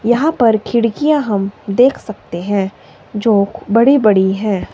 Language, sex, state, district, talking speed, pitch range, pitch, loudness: Hindi, female, Himachal Pradesh, Shimla, 140 wpm, 200-245 Hz, 215 Hz, -14 LUFS